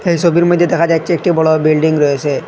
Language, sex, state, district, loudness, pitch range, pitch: Bengali, male, Assam, Hailakandi, -12 LUFS, 155-170 Hz, 165 Hz